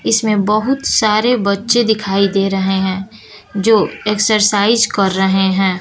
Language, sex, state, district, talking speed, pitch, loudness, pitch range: Hindi, female, Bihar, West Champaran, 135 wpm, 205 Hz, -14 LUFS, 195-220 Hz